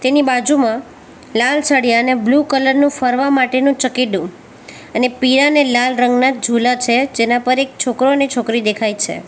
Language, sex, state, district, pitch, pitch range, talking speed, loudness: Gujarati, female, Gujarat, Valsad, 255 Hz, 240-270 Hz, 150 wpm, -14 LUFS